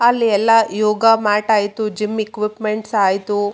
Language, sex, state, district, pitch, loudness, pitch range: Kannada, female, Karnataka, Raichur, 215 Hz, -17 LUFS, 210-220 Hz